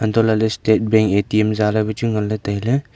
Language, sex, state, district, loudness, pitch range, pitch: Wancho, male, Arunachal Pradesh, Longding, -18 LUFS, 105-110 Hz, 110 Hz